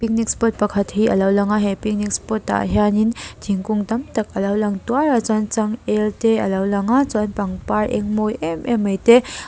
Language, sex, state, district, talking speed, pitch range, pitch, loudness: Mizo, female, Mizoram, Aizawl, 220 wpm, 200-225 Hz, 215 Hz, -19 LUFS